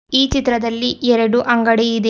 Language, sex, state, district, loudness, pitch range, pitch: Kannada, female, Karnataka, Bidar, -16 LUFS, 230-250 Hz, 240 Hz